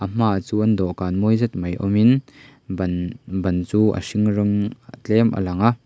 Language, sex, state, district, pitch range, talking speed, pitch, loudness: Mizo, male, Mizoram, Aizawl, 95-115 Hz, 185 wpm, 105 Hz, -20 LUFS